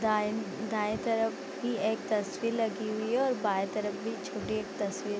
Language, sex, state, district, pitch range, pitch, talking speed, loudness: Hindi, female, Bihar, Gopalganj, 210-225 Hz, 215 Hz, 195 wpm, -32 LUFS